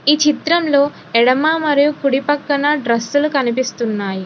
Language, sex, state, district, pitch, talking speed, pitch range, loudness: Telugu, female, Telangana, Hyderabad, 285 Hz, 115 wpm, 250-295 Hz, -16 LUFS